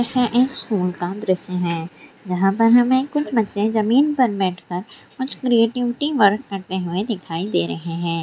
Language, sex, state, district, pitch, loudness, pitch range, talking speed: Hindi, female, Bihar, Sitamarhi, 205 Hz, -20 LUFS, 180-245 Hz, 160 wpm